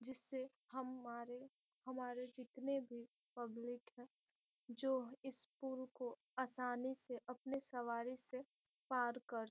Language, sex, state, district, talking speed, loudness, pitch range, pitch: Hindi, female, Bihar, Gopalganj, 120 wpm, -48 LUFS, 245-260 Hz, 255 Hz